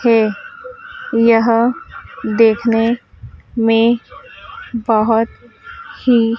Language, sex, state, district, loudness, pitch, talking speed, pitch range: Hindi, female, Madhya Pradesh, Dhar, -15 LUFS, 230 Hz, 55 wpm, 225-245 Hz